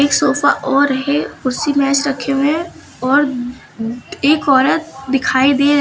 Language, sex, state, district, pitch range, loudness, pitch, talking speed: Hindi, female, Uttar Pradesh, Lucknow, 260-285 Hz, -15 LUFS, 275 Hz, 135 wpm